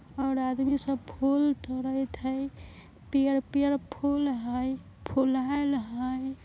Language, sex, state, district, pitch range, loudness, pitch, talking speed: Bajjika, male, Bihar, Vaishali, 260-275 Hz, -29 LUFS, 270 Hz, 100 wpm